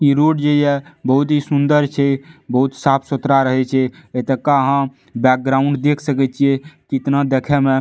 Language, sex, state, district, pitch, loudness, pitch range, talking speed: Maithili, male, Bihar, Madhepura, 140 Hz, -17 LUFS, 135-145 Hz, 175 wpm